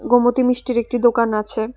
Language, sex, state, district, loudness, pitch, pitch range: Bengali, female, Tripura, West Tripura, -18 LUFS, 240 Hz, 230-245 Hz